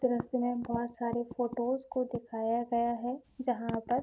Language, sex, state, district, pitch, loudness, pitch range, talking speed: Hindi, female, Bihar, Sitamarhi, 240 Hz, -34 LUFS, 235-250 Hz, 180 wpm